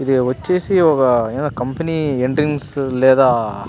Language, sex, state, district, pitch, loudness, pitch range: Telugu, male, Andhra Pradesh, Anantapur, 135 Hz, -16 LUFS, 125-150 Hz